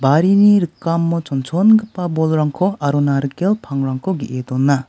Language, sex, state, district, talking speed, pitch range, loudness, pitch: Garo, male, Meghalaya, West Garo Hills, 110 wpm, 140-185 Hz, -17 LUFS, 160 Hz